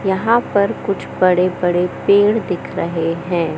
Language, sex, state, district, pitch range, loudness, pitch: Hindi, male, Madhya Pradesh, Katni, 175-200 Hz, -17 LUFS, 185 Hz